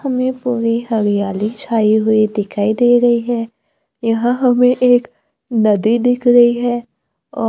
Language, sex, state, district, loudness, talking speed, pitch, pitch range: Hindi, female, Maharashtra, Gondia, -15 LUFS, 135 wpm, 235 Hz, 220-245 Hz